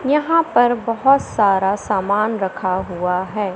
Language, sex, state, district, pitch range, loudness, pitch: Hindi, male, Madhya Pradesh, Katni, 190-240 Hz, -18 LUFS, 205 Hz